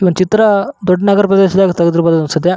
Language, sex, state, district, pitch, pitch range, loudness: Kannada, male, Karnataka, Raichur, 185 Hz, 175-200 Hz, -11 LUFS